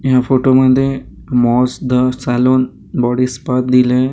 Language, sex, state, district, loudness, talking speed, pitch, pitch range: Marathi, male, Maharashtra, Gondia, -14 LUFS, 130 wpm, 125 Hz, 125-130 Hz